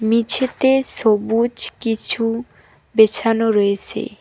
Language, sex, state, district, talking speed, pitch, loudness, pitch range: Bengali, female, West Bengal, Cooch Behar, 70 wpm, 225 Hz, -17 LUFS, 220-245 Hz